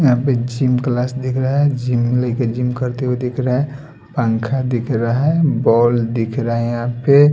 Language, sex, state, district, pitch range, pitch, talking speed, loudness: Hindi, male, Odisha, Sambalpur, 120-130 Hz, 125 Hz, 205 wpm, -17 LUFS